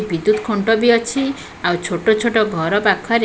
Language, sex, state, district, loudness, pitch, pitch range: Odia, female, Odisha, Khordha, -17 LUFS, 215 Hz, 200-230 Hz